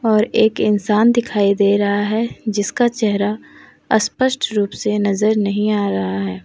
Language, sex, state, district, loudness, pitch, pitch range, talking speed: Hindi, female, Jharkhand, Deoghar, -17 LUFS, 210 Hz, 200-220 Hz, 160 wpm